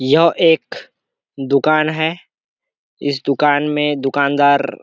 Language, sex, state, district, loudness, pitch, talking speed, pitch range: Hindi, male, Bihar, Kishanganj, -16 LUFS, 145 Hz, 110 wpm, 140-155 Hz